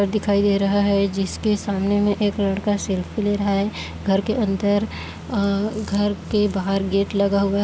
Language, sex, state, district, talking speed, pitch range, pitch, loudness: Hindi, female, Chhattisgarh, Kabirdham, 190 wpm, 200-205 Hz, 200 Hz, -21 LUFS